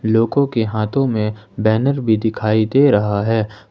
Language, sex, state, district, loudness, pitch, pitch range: Hindi, male, Jharkhand, Ranchi, -17 LUFS, 110 Hz, 105-115 Hz